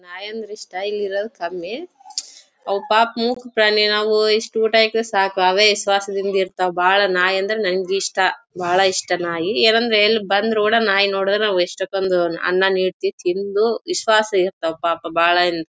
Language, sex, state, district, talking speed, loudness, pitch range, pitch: Kannada, female, Karnataka, Bellary, 155 wpm, -18 LUFS, 185-220 Hz, 200 Hz